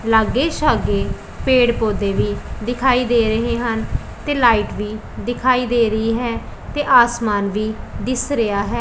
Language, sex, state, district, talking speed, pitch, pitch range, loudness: Punjabi, female, Punjab, Pathankot, 150 wpm, 235 Hz, 220-245 Hz, -18 LUFS